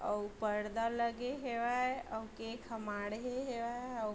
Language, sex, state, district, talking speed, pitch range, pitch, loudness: Chhattisgarhi, female, Chhattisgarh, Bilaspur, 145 wpm, 215-245 Hz, 235 Hz, -39 LUFS